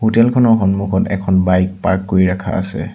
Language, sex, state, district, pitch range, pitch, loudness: Assamese, male, Assam, Sonitpur, 95-105 Hz, 95 Hz, -15 LUFS